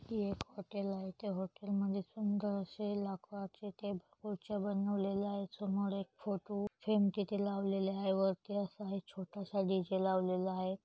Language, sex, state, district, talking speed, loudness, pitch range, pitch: Marathi, female, Maharashtra, Solapur, 155 wpm, -38 LUFS, 195-205 Hz, 200 Hz